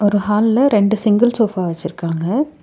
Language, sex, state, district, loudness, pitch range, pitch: Tamil, female, Tamil Nadu, Nilgiris, -16 LUFS, 185-225 Hz, 210 Hz